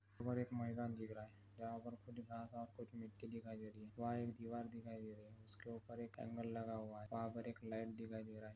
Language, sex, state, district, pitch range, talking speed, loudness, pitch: Hindi, male, Maharashtra, Aurangabad, 110-115 Hz, 275 wpm, -50 LUFS, 115 Hz